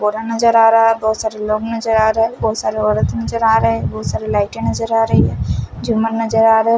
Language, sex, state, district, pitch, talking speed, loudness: Hindi, male, Punjab, Fazilka, 220 Hz, 240 wpm, -16 LUFS